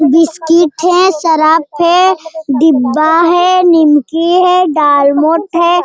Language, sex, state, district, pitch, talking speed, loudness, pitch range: Hindi, female, Bihar, Jamui, 330 Hz, 105 wpm, -9 LUFS, 310-350 Hz